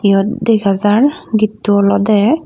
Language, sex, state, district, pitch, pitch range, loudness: Chakma, female, Tripura, Dhalai, 210 Hz, 200-225 Hz, -13 LUFS